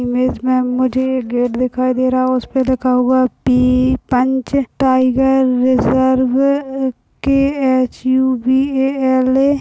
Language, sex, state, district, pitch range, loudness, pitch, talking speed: Hindi, male, Maharashtra, Nagpur, 255-265 Hz, -15 LUFS, 260 Hz, 110 wpm